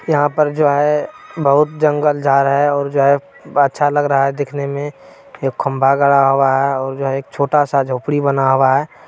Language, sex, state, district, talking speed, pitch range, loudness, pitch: Maithili, male, Bihar, Purnia, 210 wpm, 135-145 Hz, -15 LUFS, 140 Hz